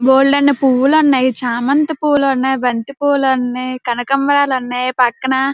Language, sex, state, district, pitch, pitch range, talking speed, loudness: Telugu, female, Andhra Pradesh, Srikakulam, 265 Hz, 255-280 Hz, 140 wpm, -14 LUFS